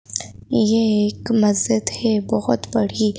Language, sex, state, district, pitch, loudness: Hindi, female, Madhya Pradesh, Bhopal, 210 Hz, -19 LUFS